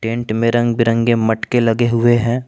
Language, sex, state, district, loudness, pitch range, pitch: Hindi, male, Jharkhand, Palamu, -16 LUFS, 115-120 Hz, 115 Hz